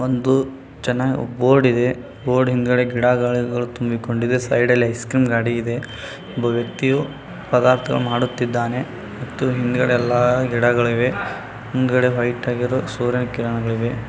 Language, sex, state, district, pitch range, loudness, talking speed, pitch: Kannada, male, Karnataka, Bijapur, 120-125 Hz, -19 LUFS, 130 wpm, 125 Hz